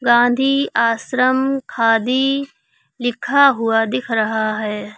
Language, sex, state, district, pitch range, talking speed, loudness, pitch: Hindi, female, Uttar Pradesh, Lucknow, 225-270 Hz, 95 wpm, -17 LUFS, 245 Hz